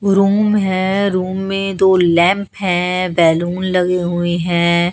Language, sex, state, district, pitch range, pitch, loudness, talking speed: Hindi, female, Haryana, Charkhi Dadri, 175-195 Hz, 185 Hz, -15 LUFS, 135 wpm